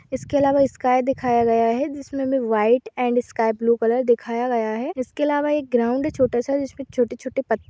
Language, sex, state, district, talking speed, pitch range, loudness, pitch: Hindi, female, Uttar Pradesh, Budaun, 210 wpm, 235-275 Hz, -21 LUFS, 250 Hz